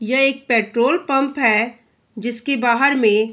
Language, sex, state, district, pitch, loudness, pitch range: Hindi, female, Bihar, Araria, 240 Hz, -17 LUFS, 230-270 Hz